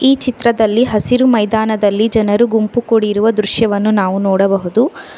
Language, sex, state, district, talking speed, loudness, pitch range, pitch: Kannada, female, Karnataka, Bangalore, 115 wpm, -13 LUFS, 205-235 Hz, 220 Hz